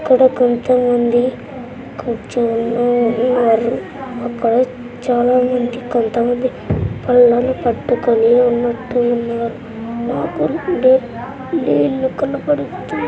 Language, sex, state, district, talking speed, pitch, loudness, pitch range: Telugu, female, Andhra Pradesh, Anantapur, 65 wpm, 245 Hz, -16 LUFS, 235-255 Hz